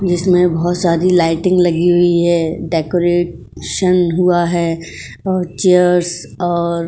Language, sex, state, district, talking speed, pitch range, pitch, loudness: Hindi, female, Uttar Pradesh, Jyotiba Phule Nagar, 115 wpm, 170-180 Hz, 175 Hz, -14 LUFS